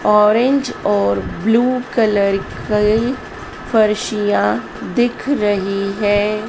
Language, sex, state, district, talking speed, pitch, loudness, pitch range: Hindi, female, Madhya Pradesh, Dhar, 85 wpm, 210 Hz, -16 LUFS, 195-235 Hz